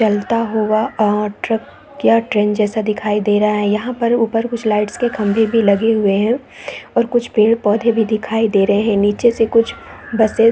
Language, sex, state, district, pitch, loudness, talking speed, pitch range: Hindi, female, Chhattisgarh, Raigarh, 220 Hz, -16 LUFS, 190 wpm, 210-230 Hz